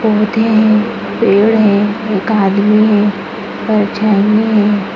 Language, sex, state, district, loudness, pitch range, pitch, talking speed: Hindi, female, Uttarakhand, Tehri Garhwal, -12 LUFS, 205-220 Hz, 210 Hz, 110 wpm